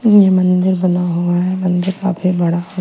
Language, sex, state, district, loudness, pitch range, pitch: Hindi, female, Bihar, Patna, -15 LUFS, 175-185 Hz, 185 Hz